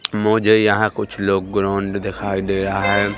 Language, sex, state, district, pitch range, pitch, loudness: Hindi, male, Madhya Pradesh, Katni, 100-105 Hz, 100 Hz, -18 LUFS